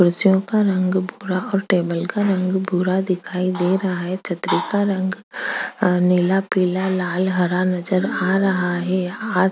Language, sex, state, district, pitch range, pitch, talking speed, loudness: Hindi, female, Chhattisgarh, Kabirdham, 180-190 Hz, 185 Hz, 165 wpm, -20 LUFS